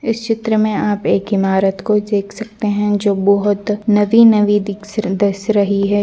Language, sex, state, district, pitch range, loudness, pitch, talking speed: Hindi, female, Bihar, Purnia, 200-215 Hz, -15 LUFS, 205 Hz, 150 wpm